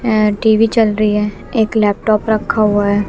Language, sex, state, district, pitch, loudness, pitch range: Hindi, female, Bihar, West Champaran, 215 Hz, -14 LUFS, 210-220 Hz